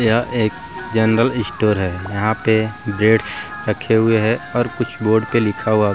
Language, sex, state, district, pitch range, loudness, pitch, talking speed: Hindi, male, Bihar, Vaishali, 105-115 Hz, -18 LUFS, 110 Hz, 170 wpm